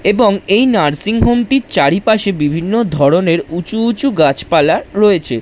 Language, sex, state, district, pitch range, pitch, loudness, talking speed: Bengali, male, West Bengal, Dakshin Dinajpur, 165-225 Hz, 200 Hz, -13 LUFS, 135 wpm